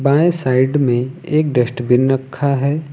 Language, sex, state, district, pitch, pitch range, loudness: Hindi, male, Uttar Pradesh, Lucknow, 135 Hz, 125-150 Hz, -16 LUFS